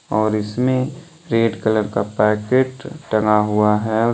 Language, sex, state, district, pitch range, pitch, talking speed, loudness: Hindi, male, Jharkhand, Deoghar, 105-130 Hz, 110 Hz, 130 wpm, -19 LUFS